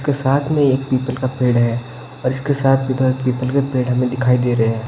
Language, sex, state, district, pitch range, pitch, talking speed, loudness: Hindi, male, Himachal Pradesh, Shimla, 125-135 Hz, 130 Hz, 260 wpm, -18 LUFS